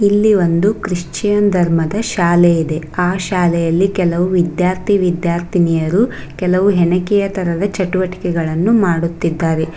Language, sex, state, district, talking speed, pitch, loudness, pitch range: Kannada, female, Karnataka, Bangalore, 100 wpm, 180 Hz, -15 LUFS, 170-195 Hz